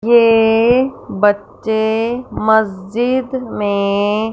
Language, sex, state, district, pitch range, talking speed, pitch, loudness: Hindi, female, Punjab, Fazilka, 205-235 Hz, 55 wpm, 220 Hz, -15 LUFS